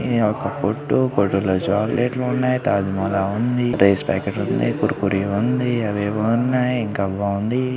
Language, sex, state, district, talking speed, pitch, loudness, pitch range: Telugu, male, Andhra Pradesh, Srikakulam, 155 wpm, 110 Hz, -20 LUFS, 100-125 Hz